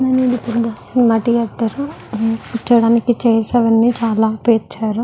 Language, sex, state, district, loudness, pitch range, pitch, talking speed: Telugu, female, Andhra Pradesh, Guntur, -16 LUFS, 225-240 Hz, 230 Hz, 120 wpm